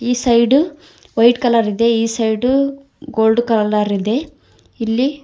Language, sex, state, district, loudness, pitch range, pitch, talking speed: Kannada, female, Karnataka, Koppal, -16 LUFS, 225-275 Hz, 235 Hz, 135 wpm